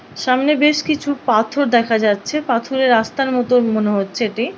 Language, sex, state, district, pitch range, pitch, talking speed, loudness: Bengali, female, West Bengal, Purulia, 225-280 Hz, 245 Hz, 170 wpm, -17 LUFS